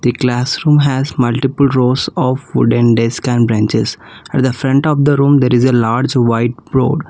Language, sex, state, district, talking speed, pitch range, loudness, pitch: English, female, Telangana, Hyderabad, 185 wpm, 120-140 Hz, -13 LUFS, 130 Hz